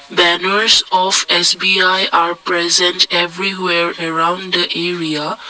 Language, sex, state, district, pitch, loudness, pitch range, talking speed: English, male, Assam, Kamrup Metropolitan, 175 Hz, -13 LUFS, 170-185 Hz, 100 wpm